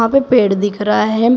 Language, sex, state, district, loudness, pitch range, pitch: Hindi, female, Uttar Pradesh, Shamli, -14 LUFS, 205-245 Hz, 220 Hz